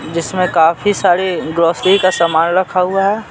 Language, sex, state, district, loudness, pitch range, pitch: Hindi, male, Bihar, Patna, -14 LUFS, 170-190 Hz, 180 Hz